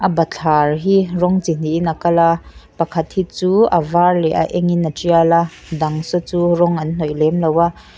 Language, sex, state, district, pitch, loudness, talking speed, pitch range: Mizo, female, Mizoram, Aizawl, 170 Hz, -16 LUFS, 220 wpm, 160-175 Hz